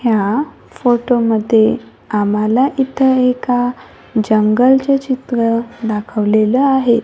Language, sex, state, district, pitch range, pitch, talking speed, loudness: Marathi, female, Maharashtra, Gondia, 220-260 Hz, 240 Hz, 75 wpm, -15 LUFS